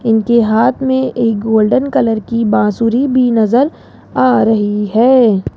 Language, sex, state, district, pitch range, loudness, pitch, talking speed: Hindi, female, Rajasthan, Jaipur, 220-255 Hz, -12 LUFS, 230 Hz, 140 wpm